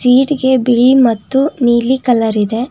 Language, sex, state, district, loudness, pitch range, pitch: Kannada, female, Karnataka, Bangalore, -12 LUFS, 235-260 Hz, 250 Hz